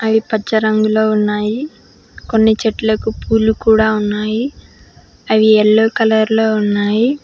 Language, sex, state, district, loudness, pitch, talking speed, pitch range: Telugu, female, Telangana, Hyderabad, -14 LUFS, 220 Hz, 110 wpm, 215-220 Hz